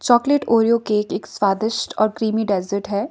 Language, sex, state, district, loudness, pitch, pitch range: Hindi, female, Himachal Pradesh, Shimla, -19 LUFS, 215 Hz, 200-230 Hz